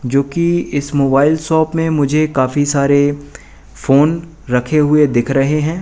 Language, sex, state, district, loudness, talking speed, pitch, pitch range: Hindi, male, Madhya Pradesh, Katni, -14 LUFS, 155 wpm, 145 Hz, 140-155 Hz